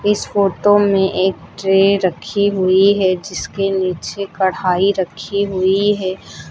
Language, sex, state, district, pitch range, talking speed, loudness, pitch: Hindi, female, Uttar Pradesh, Lucknow, 185-200 Hz, 130 wpm, -16 LUFS, 195 Hz